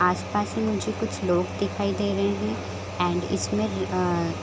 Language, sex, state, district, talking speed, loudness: Hindi, female, Chhattisgarh, Raigarh, 190 wpm, -26 LUFS